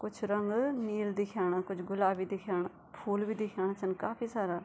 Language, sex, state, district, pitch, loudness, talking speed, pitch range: Garhwali, female, Uttarakhand, Tehri Garhwal, 200 Hz, -34 LUFS, 170 wpm, 185-210 Hz